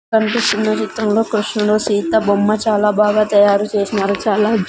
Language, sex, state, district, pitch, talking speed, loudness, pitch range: Telugu, female, Andhra Pradesh, Sri Satya Sai, 210 Hz, 130 wpm, -15 LUFS, 205-215 Hz